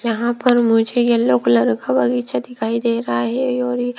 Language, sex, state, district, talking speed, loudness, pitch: Hindi, female, Himachal Pradesh, Shimla, 195 wpm, -18 LUFS, 230 Hz